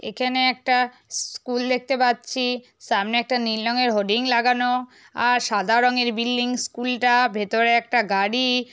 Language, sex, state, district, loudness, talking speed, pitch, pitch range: Bengali, female, West Bengal, North 24 Parganas, -21 LUFS, 135 wpm, 245 Hz, 235-250 Hz